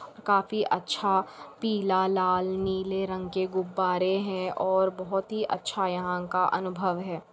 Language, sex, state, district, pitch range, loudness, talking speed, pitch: Hindi, female, Chhattisgarh, Bilaspur, 185-195 Hz, -28 LUFS, 140 wpm, 190 Hz